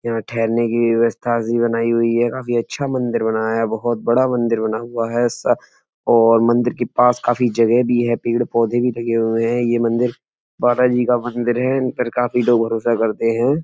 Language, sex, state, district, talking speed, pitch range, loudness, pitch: Hindi, male, Uttar Pradesh, Etah, 205 wpm, 115-120 Hz, -18 LUFS, 120 Hz